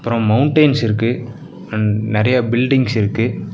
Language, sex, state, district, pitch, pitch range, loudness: Tamil, male, Tamil Nadu, Nilgiris, 115 Hz, 110-130 Hz, -16 LUFS